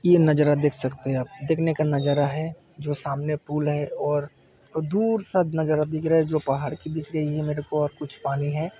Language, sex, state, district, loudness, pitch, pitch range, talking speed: Hindi, male, Chhattisgarh, Bilaspur, -24 LUFS, 150 Hz, 145-160 Hz, 210 wpm